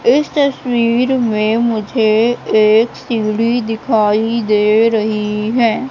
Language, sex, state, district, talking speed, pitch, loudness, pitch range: Hindi, female, Madhya Pradesh, Katni, 100 wpm, 225 Hz, -14 LUFS, 215-240 Hz